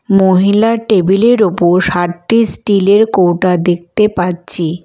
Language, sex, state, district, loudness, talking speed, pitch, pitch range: Bengali, female, West Bengal, Alipurduar, -11 LUFS, 125 wpm, 190 Hz, 175-210 Hz